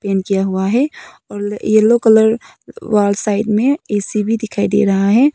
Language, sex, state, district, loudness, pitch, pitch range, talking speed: Hindi, female, Arunachal Pradesh, Papum Pare, -15 LUFS, 210 Hz, 205-225 Hz, 170 wpm